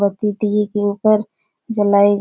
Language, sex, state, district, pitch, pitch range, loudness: Hindi, female, Bihar, Supaul, 210 Hz, 205-215 Hz, -17 LUFS